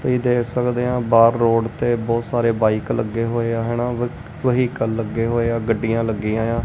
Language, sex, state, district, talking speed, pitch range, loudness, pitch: Punjabi, male, Punjab, Kapurthala, 190 wpm, 115-120 Hz, -20 LUFS, 115 Hz